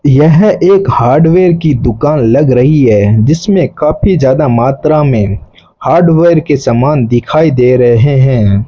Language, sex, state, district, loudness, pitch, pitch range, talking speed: Hindi, male, Rajasthan, Bikaner, -8 LUFS, 135 Hz, 120-155 Hz, 140 wpm